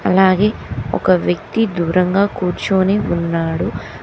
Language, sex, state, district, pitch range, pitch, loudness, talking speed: Telugu, female, Telangana, Mahabubabad, 170-195 Hz, 180 Hz, -17 LUFS, 90 wpm